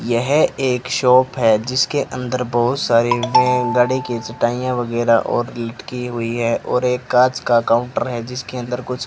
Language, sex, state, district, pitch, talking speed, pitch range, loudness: Hindi, male, Rajasthan, Bikaner, 125 Hz, 180 wpm, 120-125 Hz, -18 LUFS